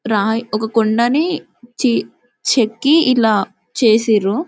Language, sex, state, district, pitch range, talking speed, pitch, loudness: Telugu, female, Telangana, Karimnagar, 220-255 Hz, 95 wpm, 230 Hz, -16 LUFS